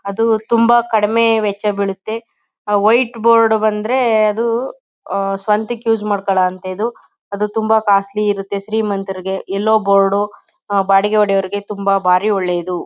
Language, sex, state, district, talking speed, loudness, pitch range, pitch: Kannada, male, Karnataka, Chamarajanagar, 120 wpm, -16 LUFS, 195-225 Hz, 210 Hz